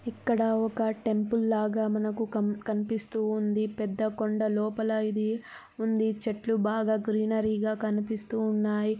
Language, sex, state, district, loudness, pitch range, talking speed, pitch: Telugu, female, Andhra Pradesh, Anantapur, -29 LUFS, 215-220 Hz, 120 wpm, 220 Hz